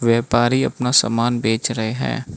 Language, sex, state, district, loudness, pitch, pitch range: Hindi, male, Manipur, Imphal West, -18 LUFS, 115 Hz, 110-120 Hz